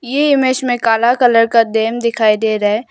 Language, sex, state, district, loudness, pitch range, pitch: Hindi, female, Arunachal Pradesh, Lower Dibang Valley, -13 LUFS, 225-245 Hz, 230 Hz